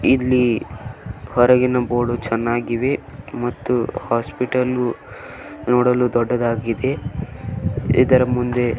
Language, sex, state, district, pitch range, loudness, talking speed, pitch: Kannada, male, Karnataka, Belgaum, 115-125 Hz, -19 LUFS, 75 wpm, 120 Hz